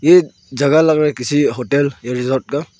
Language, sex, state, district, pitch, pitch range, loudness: Hindi, male, Arunachal Pradesh, Longding, 145 Hz, 125-150 Hz, -16 LUFS